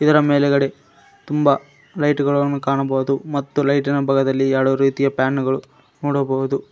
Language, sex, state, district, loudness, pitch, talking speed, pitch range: Kannada, male, Karnataka, Koppal, -19 LUFS, 140 Hz, 115 wpm, 135-145 Hz